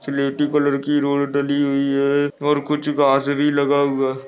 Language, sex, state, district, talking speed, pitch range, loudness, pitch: Hindi, male, Chhattisgarh, Balrampur, 180 wpm, 140-145 Hz, -19 LUFS, 140 Hz